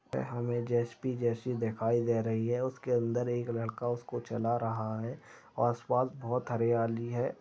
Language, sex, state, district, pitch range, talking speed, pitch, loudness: Hindi, male, Chhattisgarh, Bastar, 115-120 Hz, 170 wpm, 120 Hz, -33 LUFS